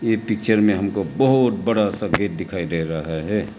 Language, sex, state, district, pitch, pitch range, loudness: Hindi, male, Arunachal Pradesh, Lower Dibang Valley, 105 Hz, 90-110 Hz, -20 LUFS